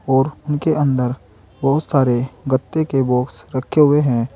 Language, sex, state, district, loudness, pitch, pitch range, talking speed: Hindi, male, Uttar Pradesh, Saharanpur, -18 LUFS, 135 Hz, 125-145 Hz, 150 wpm